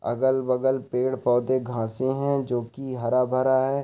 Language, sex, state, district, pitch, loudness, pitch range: Hindi, male, Chhattisgarh, Raigarh, 130 Hz, -25 LUFS, 125-130 Hz